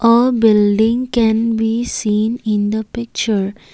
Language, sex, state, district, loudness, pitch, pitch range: English, female, Assam, Kamrup Metropolitan, -16 LUFS, 225 Hz, 215-235 Hz